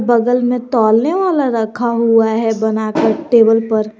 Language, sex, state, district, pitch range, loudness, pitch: Hindi, male, Jharkhand, Garhwa, 220-245 Hz, -14 LUFS, 230 Hz